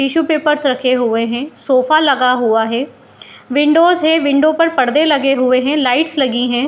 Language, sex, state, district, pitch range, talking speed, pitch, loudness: Hindi, female, Bihar, Madhepura, 250-305 Hz, 190 wpm, 275 Hz, -13 LUFS